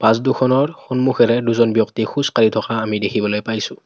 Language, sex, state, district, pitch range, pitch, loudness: Assamese, male, Assam, Kamrup Metropolitan, 110-130 Hz, 115 Hz, -17 LUFS